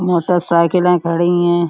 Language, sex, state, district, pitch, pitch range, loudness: Hindi, female, Uttar Pradesh, Budaun, 175 Hz, 170-180 Hz, -14 LUFS